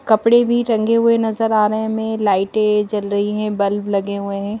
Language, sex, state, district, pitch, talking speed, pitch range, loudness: Hindi, female, Madhya Pradesh, Bhopal, 215 Hz, 220 wpm, 205-225 Hz, -17 LUFS